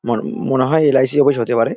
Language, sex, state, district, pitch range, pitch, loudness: Bengali, male, West Bengal, Jalpaiguri, 125-145 Hz, 135 Hz, -15 LUFS